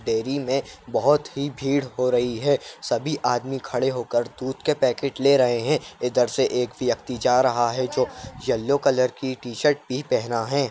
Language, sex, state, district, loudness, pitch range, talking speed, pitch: Kumaoni, male, Uttarakhand, Uttarkashi, -23 LUFS, 125-140 Hz, 185 wpm, 130 Hz